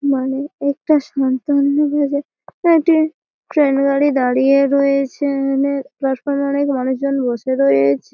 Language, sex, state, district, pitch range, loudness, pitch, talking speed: Bengali, female, West Bengal, Malda, 265-285 Hz, -17 LUFS, 275 Hz, 120 wpm